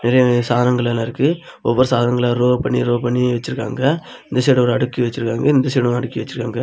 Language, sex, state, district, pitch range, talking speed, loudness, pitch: Tamil, male, Tamil Nadu, Kanyakumari, 120-130 Hz, 200 wpm, -17 LUFS, 125 Hz